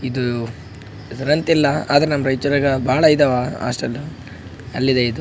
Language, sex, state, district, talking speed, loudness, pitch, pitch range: Kannada, male, Karnataka, Raichur, 115 wpm, -18 LUFS, 135 Hz, 125-145 Hz